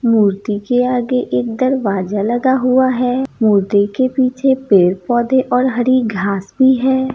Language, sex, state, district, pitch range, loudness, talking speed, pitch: Hindi, female, Bihar, East Champaran, 205-260 Hz, -15 LUFS, 145 wpm, 250 Hz